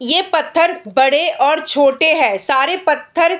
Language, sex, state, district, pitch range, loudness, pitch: Hindi, female, Bihar, Bhagalpur, 280-335 Hz, -14 LUFS, 315 Hz